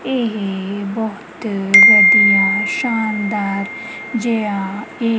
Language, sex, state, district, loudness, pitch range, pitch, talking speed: Punjabi, female, Punjab, Kapurthala, -14 LUFS, 200-230 Hz, 210 Hz, 70 wpm